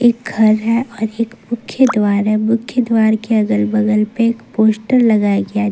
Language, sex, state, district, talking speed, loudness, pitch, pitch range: Hindi, female, Jharkhand, Ranchi, 170 wpm, -15 LUFS, 220 Hz, 210-230 Hz